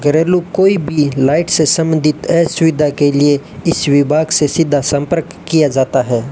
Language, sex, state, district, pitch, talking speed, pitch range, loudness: Hindi, male, Rajasthan, Bikaner, 150 Hz, 170 wpm, 145-165 Hz, -13 LUFS